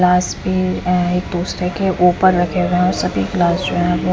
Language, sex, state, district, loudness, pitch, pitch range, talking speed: Hindi, female, Punjab, Fazilka, -17 LUFS, 180 Hz, 175-185 Hz, 230 wpm